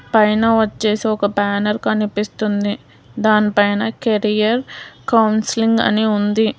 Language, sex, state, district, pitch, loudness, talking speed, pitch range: Telugu, female, Telangana, Hyderabad, 215 Hz, -17 LUFS, 100 wpm, 210-225 Hz